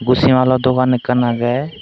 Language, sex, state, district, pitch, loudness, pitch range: Chakma, male, Tripura, Dhalai, 125 Hz, -15 LUFS, 125-130 Hz